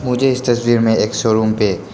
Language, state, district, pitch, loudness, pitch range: Hindi, Arunachal Pradesh, Papum Pare, 115 Hz, -15 LUFS, 110-125 Hz